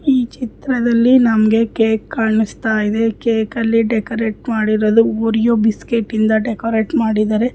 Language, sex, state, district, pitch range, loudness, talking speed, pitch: Kannada, female, Karnataka, Bijapur, 220-230 Hz, -16 LUFS, 110 wpm, 225 Hz